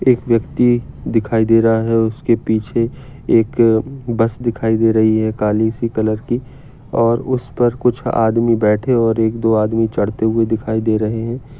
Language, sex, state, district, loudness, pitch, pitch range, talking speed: Hindi, male, Maharashtra, Dhule, -16 LUFS, 115 Hz, 110-120 Hz, 180 wpm